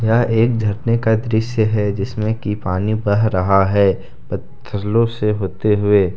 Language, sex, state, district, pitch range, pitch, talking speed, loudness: Hindi, male, Jharkhand, Deoghar, 100-115 Hz, 105 Hz, 155 wpm, -18 LUFS